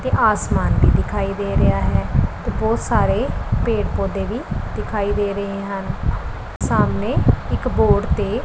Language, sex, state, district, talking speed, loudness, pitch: Punjabi, female, Punjab, Pathankot, 150 wpm, -20 LUFS, 195 Hz